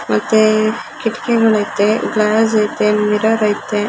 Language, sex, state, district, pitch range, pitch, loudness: Kannada, female, Karnataka, Belgaum, 210-220 Hz, 215 Hz, -15 LUFS